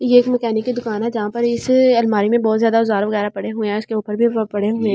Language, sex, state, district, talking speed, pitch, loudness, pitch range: Hindi, female, Delhi, New Delhi, 280 wpm, 225 Hz, -18 LUFS, 210-235 Hz